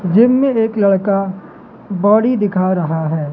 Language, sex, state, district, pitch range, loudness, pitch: Hindi, male, Madhya Pradesh, Katni, 185-220 Hz, -15 LUFS, 195 Hz